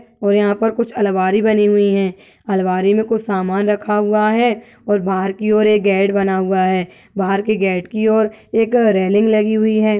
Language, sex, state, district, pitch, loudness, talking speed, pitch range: Hindi, female, Uttar Pradesh, Budaun, 205 Hz, -16 LUFS, 205 wpm, 195-220 Hz